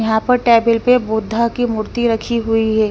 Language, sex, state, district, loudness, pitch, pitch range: Hindi, female, Punjab, Fazilka, -16 LUFS, 230 Hz, 220-240 Hz